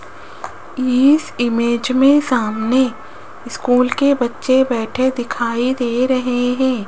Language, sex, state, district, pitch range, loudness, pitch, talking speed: Hindi, female, Rajasthan, Jaipur, 235-260 Hz, -16 LUFS, 250 Hz, 105 wpm